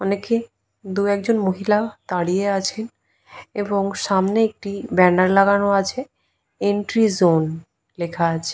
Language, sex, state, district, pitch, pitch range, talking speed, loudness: Bengali, female, West Bengal, Purulia, 200 Hz, 185-210 Hz, 105 wpm, -20 LUFS